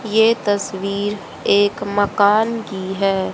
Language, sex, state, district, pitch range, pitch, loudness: Hindi, female, Haryana, Jhajjar, 195-215 Hz, 205 Hz, -18 LUFS